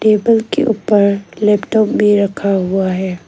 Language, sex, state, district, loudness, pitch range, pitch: Hindi, female, Arunachal Pradesh, Lower Dibang Valley, -14 LUFS, 195-215 Hz, 205 Hz